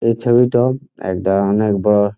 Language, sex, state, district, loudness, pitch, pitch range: Bengali, male, West Bengal, Jhargram, -16 LUFS, 105 Hz, 100-120 Hz